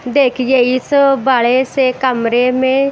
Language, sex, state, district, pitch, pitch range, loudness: Hindi, female, Haryana, Rohtak, 260 Hz, 250-270 Hz, -13 LUFS